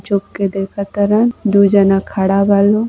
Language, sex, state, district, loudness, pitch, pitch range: Bhojpuri, female, Uttar Pradesh, Gorakhpur, -14 LUFS, 200 Hz, 195-205 Hz